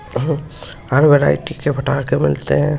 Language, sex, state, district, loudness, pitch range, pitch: Hindi, male, West Bengal, Kolkata, -16 LUFS, 125-150 Hz, 140 Hz